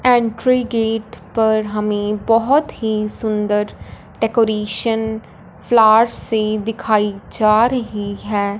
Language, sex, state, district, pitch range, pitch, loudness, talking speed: Hindi, female, Punjab, Fazilka, 210-225 Hz, 220 Hz, -17 LUFS, 100 wpm